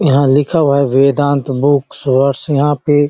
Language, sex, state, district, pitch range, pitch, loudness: Hindi, male, Chhattisgarh, Bastar, 140-145 Hz, 140 Hz, -13 LUFS